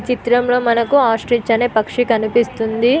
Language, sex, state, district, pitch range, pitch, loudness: Telugu, female, Telangana, Nalgonda, 225-245 Hz, 235 Hz, -16 LUFS